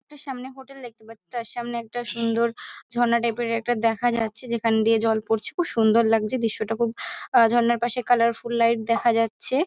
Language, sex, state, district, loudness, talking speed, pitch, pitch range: Bengali, female, West Bengal, North 24 Parganas, -23 LUFS, 205 wpm, 235 Hz, 225-240 Hz